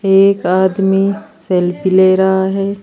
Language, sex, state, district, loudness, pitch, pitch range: Hindi, female, Uttar Pradesh, Saharanpur, -13 LUFS, 190 Hz, 190-195 Hz